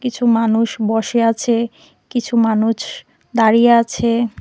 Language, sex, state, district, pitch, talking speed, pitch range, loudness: Bengali, female, Tripura, West Tripura, 230 Hz, 110 wpm, 225-235 Hz, -16 LUFS